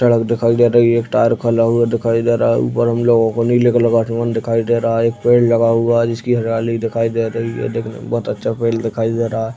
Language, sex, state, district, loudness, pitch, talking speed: Hindi, male, Uttar Pradesh, Deoria, -16 LUFS, 115 Hz, 280 wpm